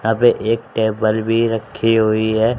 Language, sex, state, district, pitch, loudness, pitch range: Hindi, male, Haryana, Rohtak, 110 Hz, -17 LUFS, 110-115 Hz